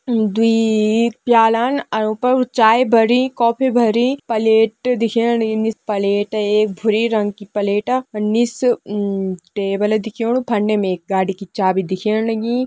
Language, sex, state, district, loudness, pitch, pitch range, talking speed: Kumaoni, female, Uttarakhand, Tehri Garhwal, -17 LUFS, 220 Hz, 210-235 Hz, 135 wpm